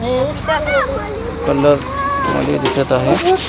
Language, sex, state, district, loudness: Marathi, male, Maharashtra, Washim, -16 LUFS